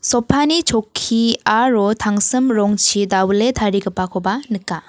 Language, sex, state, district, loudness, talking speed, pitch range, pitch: Garo, female, Meghalaya, West Garo Hills, -16 LUFS, 100 wpm, 200-245 Hz, 210 Hz